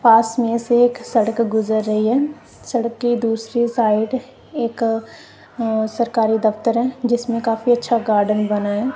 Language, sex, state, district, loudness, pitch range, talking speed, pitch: Hindi, female, Punjab, Kapurthala, -19 LUFS, 220-240 Hz, 155 wpm, 230 Hz